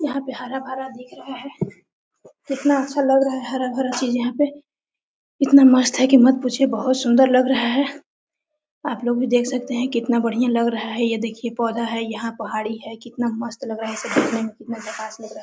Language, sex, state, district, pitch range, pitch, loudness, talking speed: Hindi, female, Jharkhand, Sahebganj, 230-270 Hz, 250 Hz, -20 LUFS, 230 wpm